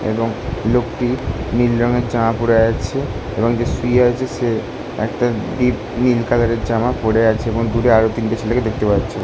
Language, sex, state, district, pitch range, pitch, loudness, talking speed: Bengali, male, West Bengal, Kolkata, 110-120 Hz, 115 Hz, -17 LUFS, 175 wpm